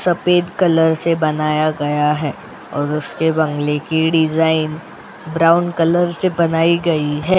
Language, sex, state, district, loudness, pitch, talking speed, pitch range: Hindi, female, Goa, North and South Goa, -16 LUFS, 160 Hz, 140 wpm, 155-170 Hz